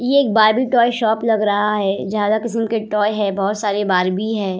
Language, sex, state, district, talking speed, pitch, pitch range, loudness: Hindi, female, Bihar, Vaishali, 220 wpm, 215 Hz, 205-225 Hz, -17 LUFS